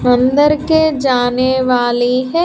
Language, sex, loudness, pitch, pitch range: Hindi, female, -13 LUFS, 255 Hz, 245-295 Hz